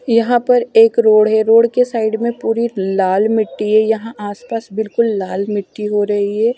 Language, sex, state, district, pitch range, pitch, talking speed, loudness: Hindi, female, Punjab, Fazilka, 205-230 Hz, 220 Hz, 200 wpm, -15 LUFS